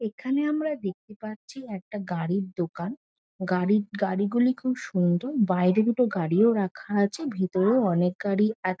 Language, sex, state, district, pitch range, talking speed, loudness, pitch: Bengali, female, West Bengal, Jhargram, 185-235 Hz, 145 wpm, -26 LUFS, 205 Hz